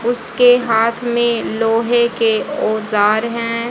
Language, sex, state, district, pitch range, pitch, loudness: Hindi, female, Haryana, Jhajjar, 225-240 Hz, 230 Hz, -15 LUFS